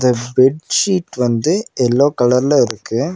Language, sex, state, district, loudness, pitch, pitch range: Tamil, male, Tamil Nadu, Nilgiris, -15 LUFS, 130 Hz, 120-145 Hz